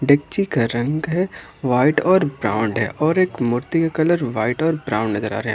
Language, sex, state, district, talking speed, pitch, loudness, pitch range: Hindi, male, Jharkhand, Ranchi, 215 wpm, 140 Hz, -19 LUFS, 115-165 Hz